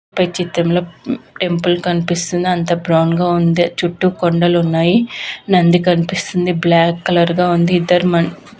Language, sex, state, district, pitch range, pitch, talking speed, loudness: Telugu, female, Andhra Pradesh, Visakhapatnam, 170-180 Hz, 175 Hz, 125 wpm, -15 LUFS